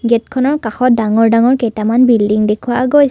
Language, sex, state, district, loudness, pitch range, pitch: Assamese, female, Assam, Kamrup Metropolitan, -13 LUFS, 225-255 Hz, 235 Hz